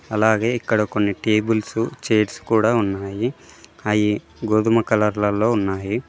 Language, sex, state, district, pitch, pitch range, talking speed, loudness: Telugu, male, Telangana, Mahabubabad, 110 Hz, 105-110 Hz, 110 wpm, -20 LUFS